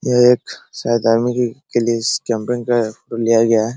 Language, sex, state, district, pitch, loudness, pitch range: Hindi, male, Bihar, Araria, 115 Hz, -17 LUFS, 115-120 Hz